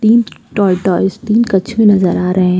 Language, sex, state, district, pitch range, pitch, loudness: Hindi, female, Uttar Pradesh, Jyotiba Phule Nagar, 180-220 Hz, 195 Hz, -13 LUFS